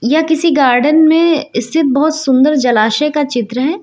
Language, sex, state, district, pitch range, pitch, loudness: Hindi, female, Uttar Pradesh, Lucknow, 255-315 Hz, 295 Hz, -12 LUFS